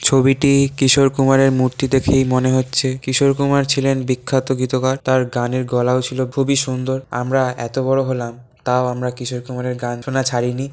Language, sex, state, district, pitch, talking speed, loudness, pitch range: Bengali, male, West Bengal, Kolkata, 130 Hz, 160 wpm, -18 LUFS, 125-135 Hz